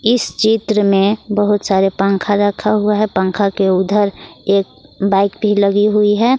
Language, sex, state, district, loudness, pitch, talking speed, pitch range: Hindi, female, Jharkhand, Garhwa, -15 LUFS, 205 Hz, 170 wpm, 195-210 Hz